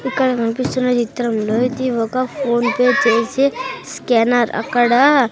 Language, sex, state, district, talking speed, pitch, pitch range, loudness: Telugu, female, Andhra Pradesh, Sri Satya Sai, 125 wpm, 245 Hz, 235-260 Hz, -17 LUFS